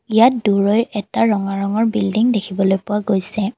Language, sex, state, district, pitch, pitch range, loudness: Assamese, female, Assam, Kamrup Metropolitan, 210 Hz, 195-225 Hz, -17 LUFS